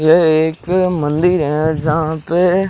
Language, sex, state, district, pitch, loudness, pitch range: Hindi, male, Rajasthan, Jaisalmer, 160 Hz, -15 LUFS, 155-180 Hz